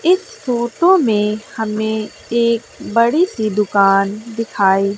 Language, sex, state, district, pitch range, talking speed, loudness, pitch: Hindi, female, Bihar, West Champaran, 210-240 Hz, 110 wpm, -16 LUFS, 220 Hz